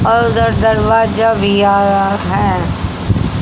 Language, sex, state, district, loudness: Hindi, female, Haryana, Jhajjar, -13 LUFS